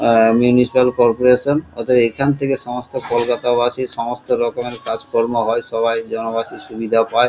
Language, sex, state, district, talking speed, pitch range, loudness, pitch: Bengali, male, West Bengal, Kolkata, 130 wpm, 115-125 Hz, -17 LUFS, 120 Hz